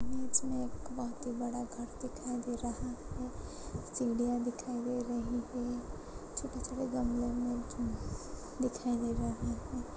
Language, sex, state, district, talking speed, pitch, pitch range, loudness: Hindi, female, Uttar Pradesh, Jalaun, 140 wpm, 245 Hz, 240-250 Hz, -37 LUFS